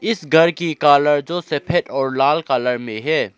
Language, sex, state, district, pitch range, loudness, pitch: Hindi, male, Arunachal Pradesh, Lower Dibang Valley, 135-165 Hz, -17 LUFS, 150 Hz